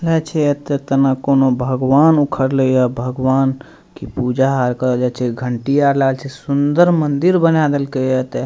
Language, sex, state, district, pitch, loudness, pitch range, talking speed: Maithili, male, Bihar, Madhepura, 135 Hz, -16 LUFS, 130-145 Hz, 185 wpm